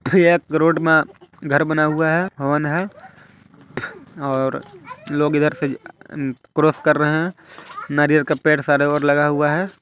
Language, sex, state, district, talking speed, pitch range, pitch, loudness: Hindi, male, Chhattisgarh, Balrampur, 160 wpm, 145-160 Hz, 150 Hz, -18 LUFS